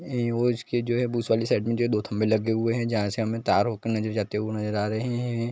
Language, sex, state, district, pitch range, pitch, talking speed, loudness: Hindi, male, Chhattisgarh, Bilaspur, 110-120 Hz, 115 Hz, 305 wpm, -26 LUFS